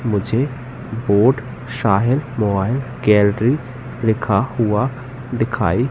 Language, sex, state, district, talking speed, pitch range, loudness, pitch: Hindi, male, Madhya Pradesh, Katni, 80 wpm, 105-130 Hz, -18 LUFS, 120 Hz